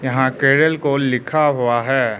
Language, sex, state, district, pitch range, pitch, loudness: Hindi, male, Arunachal Pradesh, Lower Dibang Valley, 125-145 Hz, 135 Hz, -17 LUFS